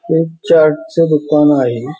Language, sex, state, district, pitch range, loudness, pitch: Marathi, male, Maharashtra, Pune, 150-165 Hz, -12 LUFS, 155 Hz